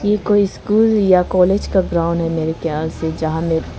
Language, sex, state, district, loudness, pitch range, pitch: Hindi, female, Arunachal Pradesh, Lower Dibang Valley, -17 LUFS, 160-205 Hz, 180 Hz